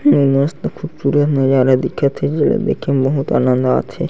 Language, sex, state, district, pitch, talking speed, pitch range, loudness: Chhattisgarhi, male, Chhattisgarh, Sarguja, 140 Hz, 175 wpm, 135-145 Hz, -16 LUFS